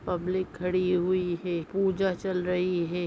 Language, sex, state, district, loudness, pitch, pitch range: Hindi, male, West Bengal, Purulia, -28 LUFS, 180 Hz, 175-185 Hz